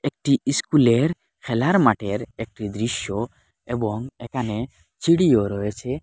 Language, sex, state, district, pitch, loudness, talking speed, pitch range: Bengali, male, Assam, Hailakandi, 120 Hz, -22 LUFS, 100 wpm, 105-135 Hz